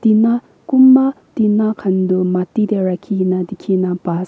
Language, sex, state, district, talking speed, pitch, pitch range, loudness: Nagamese, female, Nagaland, Kohima, 180 wpm, 200 Hz, 185-220 Hz, -15 LUFS